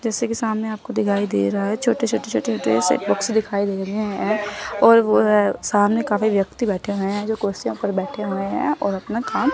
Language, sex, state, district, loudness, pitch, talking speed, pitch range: Hindi, female, Chandigarh, Chandigarh, -20 LUFS, 205 Hz, 205 wpm, 195-220 Hz